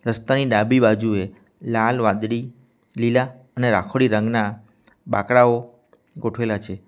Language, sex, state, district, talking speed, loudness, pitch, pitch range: Gujarati, male, Gujarat, Valsad, 105 wpm, -20 LUFS, 115 Hz, 110-125 Hz